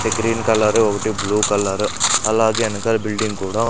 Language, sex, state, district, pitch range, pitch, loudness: Telugu, male, Andhra Pradesh, Sri Satya Sai, 105-110 Hz, 110 Hz, -18 LUFS